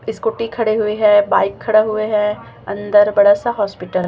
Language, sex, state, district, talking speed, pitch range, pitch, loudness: Hindi, female, Chhattisgarh, Raipur, 190 wpm, 205-220 Hz, 210 Hz, -15 LUFS